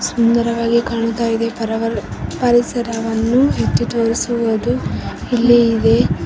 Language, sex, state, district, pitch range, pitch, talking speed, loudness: Kannada, female, Karnataka, Raichur, 225-235 Hz, 230 Hz, 85 wpm, -16 LUFS